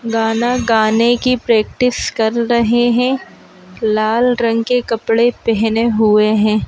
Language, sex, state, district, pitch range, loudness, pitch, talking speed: Hindi, male, Madhya Pradesh, Bhopal, 220-240 Hz, -15 LUFS, 230 Hz, 125 wpm